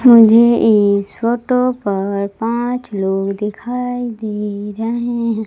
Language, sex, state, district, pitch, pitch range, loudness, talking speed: Hindi, female, Madhya Pradesh, Umaria, 225 Hz, 205-240 Hz, -16 LUFS, 110 wpm